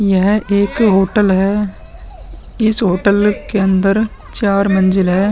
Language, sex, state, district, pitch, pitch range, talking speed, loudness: Hindi, male, Bihar, Vaishali, 200 Hz, 190-210 Hz, 125 wpm, -14 LUFS